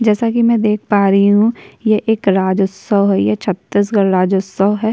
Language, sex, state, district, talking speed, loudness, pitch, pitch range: Hindi, female, Chhattisgarh, Kabirdham, 185 wpm, -14 LUFS, 205 Hz, 195-220 Hz